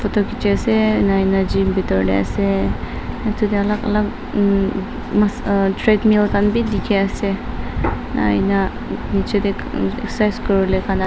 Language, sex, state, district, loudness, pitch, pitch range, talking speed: Nagamese, female, Nagaland, Dimapur, -18 LUFS, 200 Hz, 190-210 Hz, 145 wpm